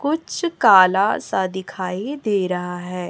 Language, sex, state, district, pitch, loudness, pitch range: Hindi, female, Chhattisgarh, Raipur, 190 Hz, -19 LUFS, 180-225 Hz